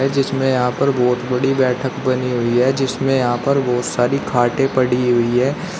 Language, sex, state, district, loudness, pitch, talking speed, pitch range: Hindi, male, Uttar Pradesh, Shamli, -17 LUFS, 130 Hz, 185 wpm, 125-135 Hz